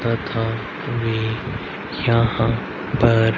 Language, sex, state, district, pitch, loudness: Hindi, male, Haryana, Rohtak, 115 Hz, -21 LUFS